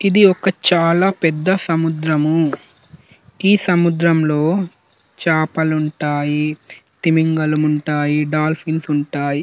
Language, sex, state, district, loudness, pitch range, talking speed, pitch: Telugu, male, Telangana, Nalgonda, -17 LUFS, 150-170 Hz, 85 wpm, 160 Hz